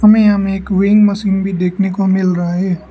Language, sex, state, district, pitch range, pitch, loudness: Hindi, male, Arunachal Pradesh, Lower Dibang Valley, 185-200 Hz, 195 Hz, -14 LUFS